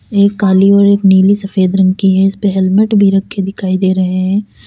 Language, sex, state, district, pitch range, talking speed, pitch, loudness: Hindi, female, Uttar Pradesh, Lalitpur, 190-200 Hz, 220 wpm, 195 Hz, -11 LUFS